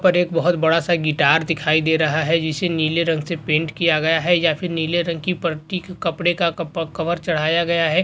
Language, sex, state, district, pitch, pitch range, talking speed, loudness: Hindi, male, Bihar, Begusarai, 165 Hz, 160-175 Hz, 240 wpm, -19 LUFS